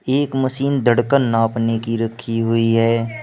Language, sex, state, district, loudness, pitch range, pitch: Hindi, male, Uttar Pradesh, Shamli, -18 LUFS, 115-130 Hz, 115 Hz